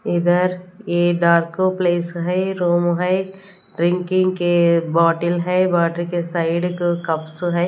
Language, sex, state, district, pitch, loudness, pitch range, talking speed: Hindi, female, Punjab, Kapurthala, 175 Hz, -19 LUFS, 170-180 Hz, 135 wpm